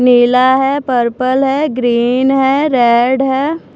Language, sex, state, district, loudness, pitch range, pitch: Hindi, female, Maharashtra, Washim, -12 LUFS, 245-270 Hz, 260 Hz